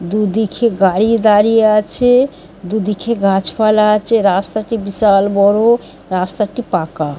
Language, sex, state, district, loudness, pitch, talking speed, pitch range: Bengali, female, West Bengal, Dakshin Dinajpur, -14 LUFS, 210 Hz, 110 wpm, 195-220 Hz